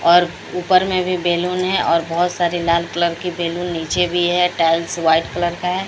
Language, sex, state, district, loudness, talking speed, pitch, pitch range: Hindi, female, Odisha, Sambalpur, -18 LUFS, 215 wpm, 175 Hz, 170-180 Hz